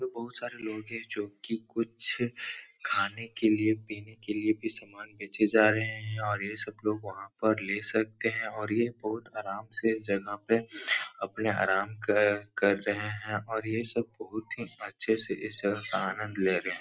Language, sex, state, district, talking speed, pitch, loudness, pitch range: Hindi, male, Uttar Pradesh, Etah, 190 wpm, 110 Hz, -31 LUFS, 105-115 Hz